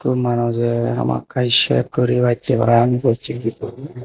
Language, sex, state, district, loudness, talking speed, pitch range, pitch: Chakma, male, Tripura, Unakoti, -17 LUFS, 105 wpm, 115-125 Hz, 120 Hz